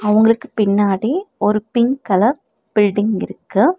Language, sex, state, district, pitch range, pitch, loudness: Tamil, female, Tamil Nadu, Nilgiris, 205-245 Hz, 215 Hz, -17 LUFS